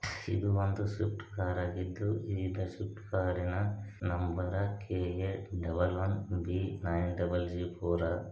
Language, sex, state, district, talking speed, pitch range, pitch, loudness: Kannada, male, Karnataka, Bijapur, 135 wpm, 90-100 Hz, 95 Hz, -35 LUFS